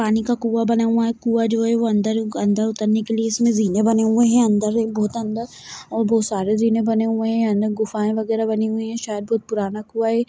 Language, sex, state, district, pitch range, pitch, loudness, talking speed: Hindi, female, Chhattisgarh, Kabirdham, 215-230 Hz, 225 Hz, -20 LUFS, 245 wpm